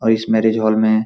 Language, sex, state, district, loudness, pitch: Hindi, male, Bihar, Supaul, -16 LUFS, 110 Hz